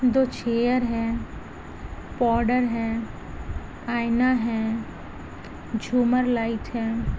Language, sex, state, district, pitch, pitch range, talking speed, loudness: Hindi, female, Chhattisgarh, Bilaspur, 235 Hz, 230-245 Hz, 90 wpm, -25 LUFS